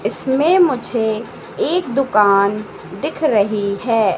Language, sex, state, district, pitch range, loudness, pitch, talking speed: Hindi, female, Madhya Pradesh, Katni, 210-305 Hz, -17 LUFS, 235 Hz, 100 wpm